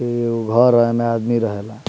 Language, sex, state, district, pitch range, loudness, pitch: Bhojpuri, male, Bihar, Muzaffarpur, 115-120 Hz, -17 LUFS, 115 Hz